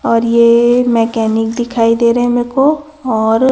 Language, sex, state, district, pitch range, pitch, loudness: Hindi, female, Chhattisgarh, Raipur, 230-245 Hz, 235 Hz, -12 LUFS